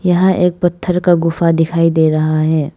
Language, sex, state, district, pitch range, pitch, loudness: Hindi, female, Arunachal Pradesh, Papum Pare, 160-180 Hz, 165 Hz, -14 LUFS